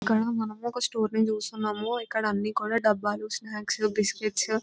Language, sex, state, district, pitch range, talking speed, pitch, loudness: Telugu, female, Telangana, Nalgonda, 210-220 Hz, 170 wpm, 215 Hz, -28 LUFS